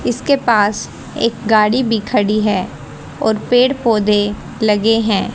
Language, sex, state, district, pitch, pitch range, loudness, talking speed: Hindi, female, Haryana, Jhajjar, 215 Hz, 205-230 Hz, -15 LUFS, 135 wpm